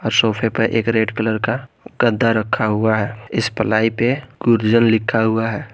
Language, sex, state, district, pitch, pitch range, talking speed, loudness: Hindi, male, Jharkhand, Garhwa, 115 Hz, 110-115 Hz, 190 wpm, -18 LUFS